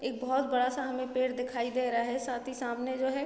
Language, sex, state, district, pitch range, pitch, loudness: Hindi, female, Bihar, Muzaffarpur, 245-260 Hz, 255 Hz, -32 LUFS